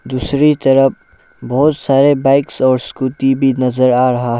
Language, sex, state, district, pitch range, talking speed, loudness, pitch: Hindi, male, Arunachal Pradesh, Lower Dibang Valley, 130-135 Hz, 165 wpm, -13 LUFS, 135 Hz